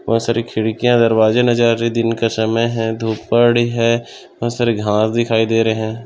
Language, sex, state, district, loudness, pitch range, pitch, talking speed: Hindi, male, Maharashtra, Solapur, -16 LUFS, 110-120 Hz, 115 Hz, 220 wpm